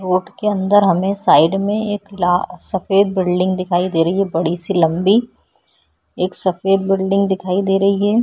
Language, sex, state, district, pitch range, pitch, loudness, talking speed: Hindi, female, Chhattisgarh, Korba, 180-200 Hz, 190 Hz, -16 LUFS, 175 wpm